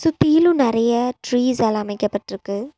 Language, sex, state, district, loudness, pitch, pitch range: Tamil, female, Tamil Nadu, Nilgiris, -19 LUFS, 235 Hz, 210-255 Hz